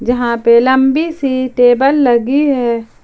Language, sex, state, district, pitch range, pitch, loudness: Hindi, female, Jharkhand, Ranchi, 240-275 Hz, 255 Hz, -12 LUFS